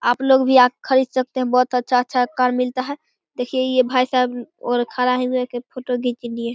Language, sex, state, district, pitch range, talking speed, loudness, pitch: Hindi, male, Bihar, Begusarai, 245-255 Hz, 220 wpm, -19 LUFS, 250 Hz